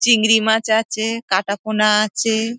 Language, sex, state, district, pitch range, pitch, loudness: Bengali, female, West Bengal, Dakshin Dinajpur, 215-225 Hz, 220 Hz, -17 LUFS